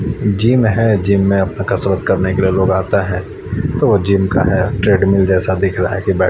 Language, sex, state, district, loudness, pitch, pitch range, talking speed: Hindi, male, Haryana, Charkhi Dadri, -14 LUFS, 95 Hz, 95-100 Hz, 220 wpm